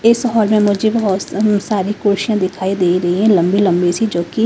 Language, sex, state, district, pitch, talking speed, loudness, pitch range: Hindi, female, Haryana, Rohtak, 205 Hz, 215 wpm, -15 LUFS, 185-220 Hz